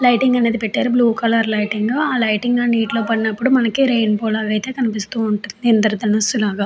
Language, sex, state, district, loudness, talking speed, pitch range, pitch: Telugu, female, Andhra Pradesh, Chittoor, -17 LUFS, 170 wpm, 215-245 Hz, 225 Hz